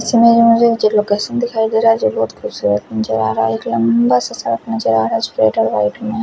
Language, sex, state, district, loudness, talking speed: Hindi, male, Odisha, Khordha, -15 LUFS, 115 wpm